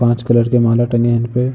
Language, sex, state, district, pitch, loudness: Hindi, male, Uttar Pradesh, Jalaun, 120 Hz, -14 LUFS